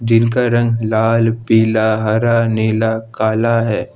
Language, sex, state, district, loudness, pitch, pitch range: Hindi, male, Jharkhand, Ranchi, -15 LUFS, 110 Hz, 110-115 Hz